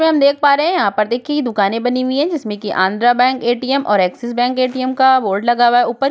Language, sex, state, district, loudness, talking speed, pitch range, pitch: Hindi, female, Uttar Pradesh, Budaun, -15 LUFS, 285 wpm, 230-275 Hz, 245 Hz